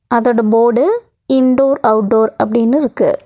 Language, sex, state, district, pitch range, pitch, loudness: Tamil, female, Tamil Nadu, Nilgiris, 230-270 Hz, 240 Hz, -13 LUFS